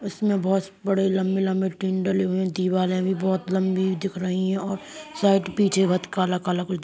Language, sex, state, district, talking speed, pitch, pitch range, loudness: Hindi, female, Uttar Pradesh, Hamirpur, 200 wpm, 190 Hz, 185-195 Hz, -24 LUFS